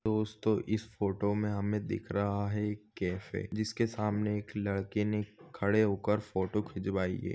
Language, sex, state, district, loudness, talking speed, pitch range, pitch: Hindi, male, Goa, North and South Goa, -33 LUFS, 165 wpm, 100-110 Hz, 105 Hz